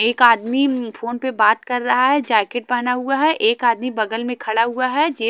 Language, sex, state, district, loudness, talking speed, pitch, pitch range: Hindi, female, Haryana, Jhajjar, -18 LUFS, 225 wpm, 245 Hz, 230-260 Hz